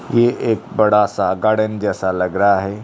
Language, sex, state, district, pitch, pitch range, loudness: Hindi, male, Odisha, Khordha, 105 Hz, 95-110 Hz, -17 LUFS